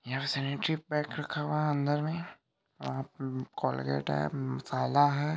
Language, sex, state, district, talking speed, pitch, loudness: Hindi, male, Bihar, Supaul, 155 wpm, 140 Hz, -32 LUFS